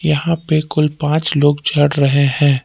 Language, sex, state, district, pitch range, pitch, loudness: Hindi, male, Jharkhand, Palamu, 145-155 Hz, 145 Hz, -15 LUFS